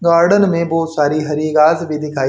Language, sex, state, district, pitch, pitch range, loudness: Hindi, male, Haryana, Charkhi Dadri, 155 Hz, 150-170 Hz, -15 LUFS